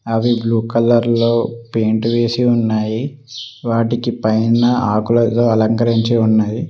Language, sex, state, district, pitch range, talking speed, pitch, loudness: Telugu, male, Telangana, Mahabubabad, 110-120 Hz, 100 wpm, 115 Hz, -16 LUFS